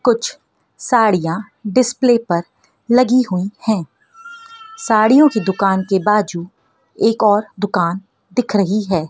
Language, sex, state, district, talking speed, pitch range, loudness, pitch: Hindi, female, Madhya Pradesh, Dhar, 120 wpm, 190-250 Hz, -16 LUFS, 215 Hz